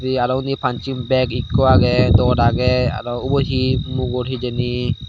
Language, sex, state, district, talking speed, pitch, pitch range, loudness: Chakma, male, Tripura, Dhalai, 165 wpm, 125 Hz, 125-130 Hz, -18 LUFS